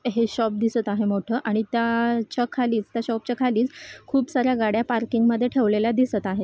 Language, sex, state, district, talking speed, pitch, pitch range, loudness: Marathi, female, Maharashtra, Solapur, 185 wpm, 230 Hz, 220-245 Hz, -23 LUFS